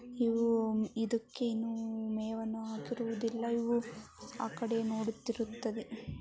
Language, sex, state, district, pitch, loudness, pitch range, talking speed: Kannada, male, Karnataka, Mysore, 230 Hz, -36 LUFS, 225-235 Hz, 75 wpm